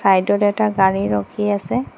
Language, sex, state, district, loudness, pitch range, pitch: Assamese, female, Assam, Hailakandi, -18 LUFS, 190-210 Hz, 205 Hz